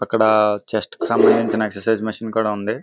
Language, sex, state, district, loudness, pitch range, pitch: Telugu, male, Andhra Pradesh, Visakhapatnam, -19 LUFS, 105-110 Hz, 110 Hz